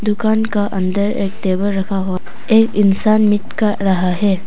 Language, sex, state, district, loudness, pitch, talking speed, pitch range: Hindi, female, Arunachal Pradesh, Papum Pare, -16 LUFS, 200 Hz, 175 wpm, 190-210 Hz